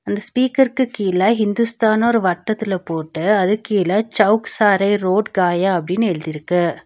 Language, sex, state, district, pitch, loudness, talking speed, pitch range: Tamil, female, Tamil Nadu, Nilgiris, 205 Hz, -17 LUFS, 140 wpm, 180-220 Hz